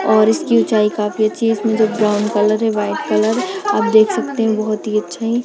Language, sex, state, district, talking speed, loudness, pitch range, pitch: Hindi, female, Bihar, Purnia, 200 wpm, -16 LUFS, 210-225 Hz, 215 Hz